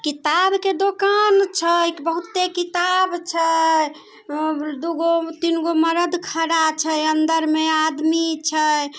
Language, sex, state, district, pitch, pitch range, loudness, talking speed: Maithili, female, Bihar, Samastipur, 330 Hz, 315-350 Hz, -19 LUFS, 120 wpm